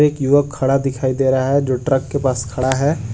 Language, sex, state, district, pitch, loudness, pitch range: Hindi, male, Jharkhand, Garhwa, 135 Hz, -17 LUFS, 130-140 Hz